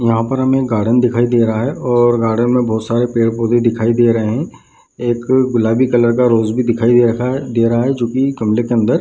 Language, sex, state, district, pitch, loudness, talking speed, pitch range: Hindi, male, Bihar, Madhepura, 120 Hz, -14 LUFS, 245 wpm, 115-125 Hz